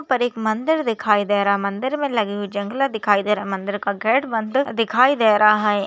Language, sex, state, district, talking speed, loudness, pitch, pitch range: Hindi, female, Maharashtra, Pune, 235 wpm, -19 LUFS, 215 Hz, 205-245 Hz